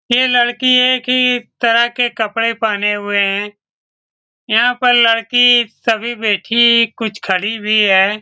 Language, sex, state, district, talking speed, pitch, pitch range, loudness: Hindi, male, Bihar, Saran, 140 wpm, 230 Hz, 210-245 Hz, -13 LUFS